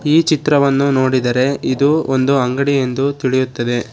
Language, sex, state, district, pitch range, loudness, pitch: Kannada, male, Karnataka, Bangalore, 130-140 Hz, -15 LUFS, 135 Hz